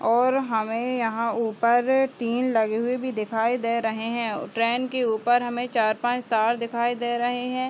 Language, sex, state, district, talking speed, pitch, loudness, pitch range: Hindi, female, Uttar Pradesh, Deoria, 180 wpm, 235 Hz, -24 LUFS, 225-245 Hz